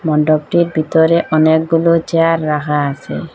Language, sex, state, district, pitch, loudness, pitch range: Bengali, female, Assam, Hailakandi, 160 Hz, -14 LUFS, 155-165 Hz